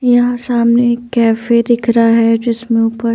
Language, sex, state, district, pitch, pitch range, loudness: Hindi, female, Bihar, Patna, 235 Hz, 230-240 Hz, -13 LUFS